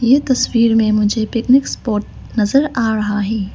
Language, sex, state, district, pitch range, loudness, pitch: Hindi, female, Arunachal Pradesh, Lower Dibang Valley, 215-250 Hz, -16 LUFS, 225 Hz